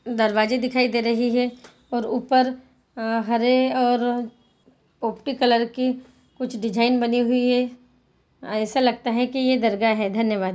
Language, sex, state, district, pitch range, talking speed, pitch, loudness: Hindi, female, Bihar, Saran, 230-250 Hz, 120 wpm, 240 Hz, -22 LUFS